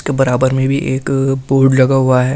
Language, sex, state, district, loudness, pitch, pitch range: Hindi, male, Delhi, New Delhi, -13 LUFS, 135 Hz, 130-135 Hz